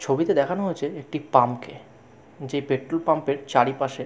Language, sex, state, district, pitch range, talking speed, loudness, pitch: Bengali, male, West Bengal, Jalpaiguri, 130-150 Hz, 175 wpm, -24 LUFS, 140 Hz